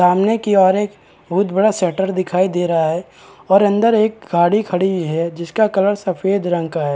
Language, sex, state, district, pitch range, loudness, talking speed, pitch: Hindi, male, Chhattisgarh, Balrampur, 175-205 Hz, -17 LUFS, 200 wpm, 190 Hz